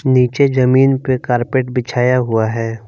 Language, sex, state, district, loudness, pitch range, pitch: Hindi, male, Jharkhand, Palamu, -15 LUFS, 120-130 Hz, 125 Hz